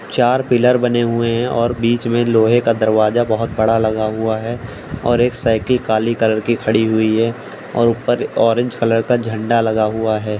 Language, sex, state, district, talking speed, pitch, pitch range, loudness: Hindi, male, Uttar Pradesh, Budaun, 190 wpm, 115 Hz, 110-120 Hz, -16 LUFS